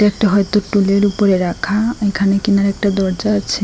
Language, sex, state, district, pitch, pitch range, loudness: Bengali, female, Assam, Hailakandi, 200 Hz, 195-210 Hz, -15 LUFS